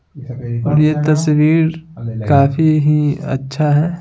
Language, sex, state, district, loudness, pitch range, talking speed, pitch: Hindi, male, Bihar, Patna, -15 LUFS, 135-155 Hz, 105 wpm, 150 Hz